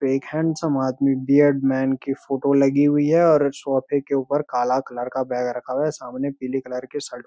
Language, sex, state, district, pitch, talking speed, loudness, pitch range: Hindi, male, Uttarakhand, Uttarkashi, 135 Hz, 230 wpm, -21 LUFS, 130-145 Hz